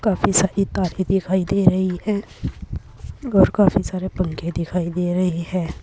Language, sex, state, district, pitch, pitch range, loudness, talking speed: Hindi, female, Uttar Pradesh, Saharanpur, 185 Hz, 180-195 Hz, -20 LUFS, 155 wpm